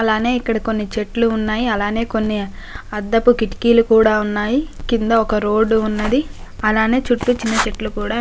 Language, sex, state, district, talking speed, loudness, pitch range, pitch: Telugu, female, Andhra Pradesh, Guntur, 145 wpm, -17 LUFS, 215-235 Hz, 220 Hz